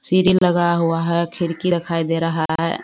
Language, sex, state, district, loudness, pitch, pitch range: Hindi, female, Bihar, Kishanganj, -19 LUFS, 170 Hz, 165-175 Hz